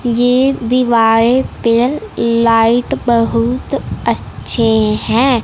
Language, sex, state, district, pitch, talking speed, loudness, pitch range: Hindi, female, Punjab, Fazilka, 235 Hz, 75 wpm, -13 LUFS, 230-245 Hz